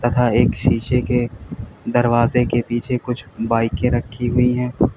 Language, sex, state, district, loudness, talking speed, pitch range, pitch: Hindi, male, Uttar Pradesh, Lalitpur, -19 LUFS, 145 wpm, 115-125 Hz, 120 Hz